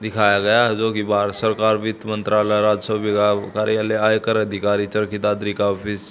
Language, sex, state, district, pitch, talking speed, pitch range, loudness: Hindi, male, Haryana, Charkhi Dadri, 105 Hz, 175 wpm, 105-110 Hz, -19 LUFS